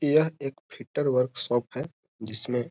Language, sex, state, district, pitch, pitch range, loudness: Hindi, male, Bihar, Gopalganj, 130 Hz, 120-145 Hz, -27 LUFS